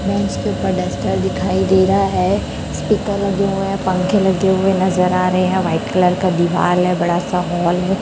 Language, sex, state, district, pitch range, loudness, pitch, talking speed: Hindi, female, Chhattisgarh, Raipur, 180-195 Hz, -17 LUFS, 185 Hz, 185 wpm